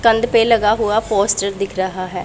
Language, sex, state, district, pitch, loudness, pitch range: Hindi, female, Punjab, Pathankot, 210 Hz, -16 LUFS, 195-225 Hz